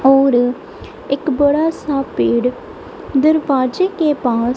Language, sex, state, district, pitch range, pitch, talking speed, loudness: Hindi, female, Punjab, Kapurthala, 250-315 Hz, 280 Hz, 120 wpm, -16 LUFS